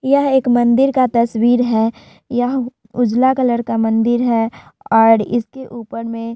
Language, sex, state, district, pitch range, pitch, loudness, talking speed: Hindi, female, Bihar, Vaishali, 230-250 Hz, 240 Hz, -16 LUFS, 160 wpm